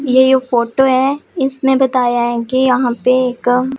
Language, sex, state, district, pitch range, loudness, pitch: Hindi, female, Punjab, Pathankot, 245-265 Hz, -14 LUFS, 255 Hz